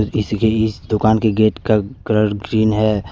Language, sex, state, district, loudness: Hindi, male, Jharkhand, Deoghar, -17 LUFS